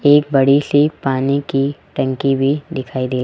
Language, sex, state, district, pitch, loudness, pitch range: Hindi, male, Rajasthan, Jaipur, 135 Hz, -16 LUFS, 135-145 Hz